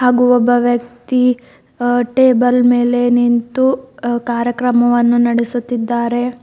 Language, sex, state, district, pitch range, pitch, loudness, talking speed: Kannada, female, Karnataka, Bidar, 240-245 Hz, 245 Hz, -14 LUFS, 85 wpm